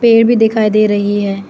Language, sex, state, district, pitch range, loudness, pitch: Hindi, female, Arunachal Pradesh, Lower Dibang Valley, 205-225 Hz, -12 LUFS, 215 Hz